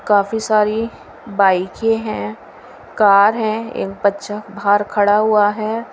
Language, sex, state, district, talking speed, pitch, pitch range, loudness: Hindi, female, Himachal Pradesh, Shimla, 120 wpm, 210 Hz, 200-220 Hz, -17 LUFS